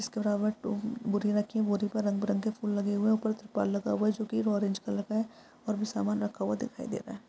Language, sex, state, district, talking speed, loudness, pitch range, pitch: Hindi, female, Uttar Pradesh, Budaun, 280 wpm, -31 LUFS, 205-220 Hz, 210 Hz